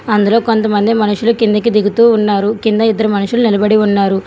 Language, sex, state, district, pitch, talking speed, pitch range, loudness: Telugu, female, Telangana, Hyderabad, 215 Hz, 155 wpm, 205-225 Hz, -12 LUFS